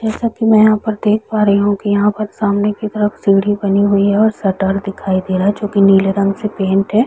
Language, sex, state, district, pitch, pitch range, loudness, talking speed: Hindi, female, Chhattisgarh, Korba, 205 Hz, 195-215 Hz, -14 LUFS, 270 wpm